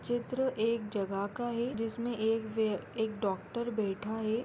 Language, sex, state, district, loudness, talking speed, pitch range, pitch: Hindi, female, Rajasthan, Nagaur, -34 LUFS, 160 wpm, 215-235 Hz, 225 Hz